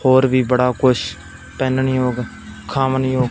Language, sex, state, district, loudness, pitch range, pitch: Hindi, male, Punjab, Fazilka, -18 LUFS, 125-130 Hz, 130 Hz